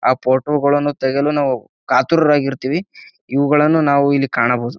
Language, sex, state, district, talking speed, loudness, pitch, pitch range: Kannada, male, Karnataka, Bijapur, 140 wpm, -16 LUFS, 140 Hz, 130-150 Hz